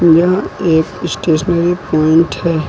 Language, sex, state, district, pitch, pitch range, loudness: Hindi, male, Uttar Pradesh, Lucknow, 165 Hz, 160-175 Hz, -14 LUFS